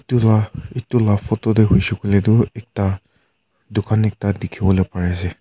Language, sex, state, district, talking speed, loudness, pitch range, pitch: Nagamese, male, Nagaland, Kohima, 120 wpm, -18 LUFS, 95-110 Hz, 105 Hz